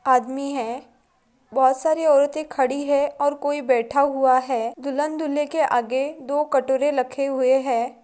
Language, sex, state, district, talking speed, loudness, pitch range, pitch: Hindi, female, Maharashtra, Pune, 155 wpm, -21 LUFS, 255-285 Hz, 270 Hz